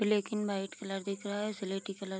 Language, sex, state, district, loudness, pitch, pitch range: Hindi, female, Bihar, Vaishali, -36 LUFS, 200 Hz, 195-210 Hz